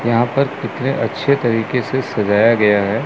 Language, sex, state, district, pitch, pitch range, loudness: Hindi, male, Chandigarh, Chandigarh, 115 Hz, 110-130 Hz, -16 LUFS